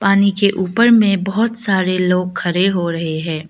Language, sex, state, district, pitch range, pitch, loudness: Hindi, female, Arunachal Pradesh, Lower Dibang Valley, 180-200 Hz, 190 Hz, -16 LUFS